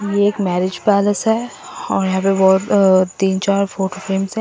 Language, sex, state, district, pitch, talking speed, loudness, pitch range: Hindi, female, Assam, Sonitpur, 195 Hz, 205 wpm, -16 LUFS, 190-205 Hz